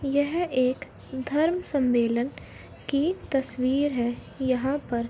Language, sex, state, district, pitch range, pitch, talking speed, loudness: Hindi, female, Uttar Pradesh, Varanasi, 255-290 Hz, 270 Hz, 115 wpm, -26 LUFS